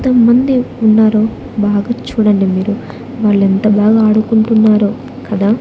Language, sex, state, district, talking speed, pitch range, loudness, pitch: Telugu, female, Andhra Pradesh, Annamaya, 115 wpm, 205-225 Hz, -12 LUFS, 215 Hz